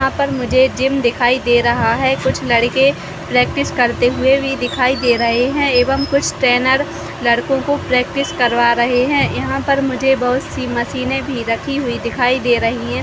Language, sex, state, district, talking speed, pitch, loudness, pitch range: Hindi, female, Chhattisgarh, Raigarh, 185 wpm, 255 Hz, -15 LUFS, 240-270 Hz